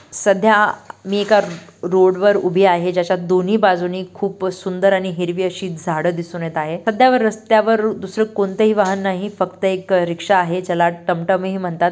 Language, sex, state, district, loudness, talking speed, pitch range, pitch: Marathi, female, Maharashtra, Dhule, -17 LUFS, 165 wpm, 180-205 Hz, 190 Hz